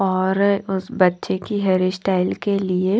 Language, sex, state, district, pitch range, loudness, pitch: Hindi, female, Haryana, Charkhi Dadri, 185-200 Hz, -20 LUFS, 190 Hz